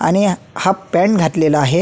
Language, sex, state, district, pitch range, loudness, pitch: Marathi, male, Maharashtra, Solapur, 160-190 Hz, -15 LUFS, 180 Hz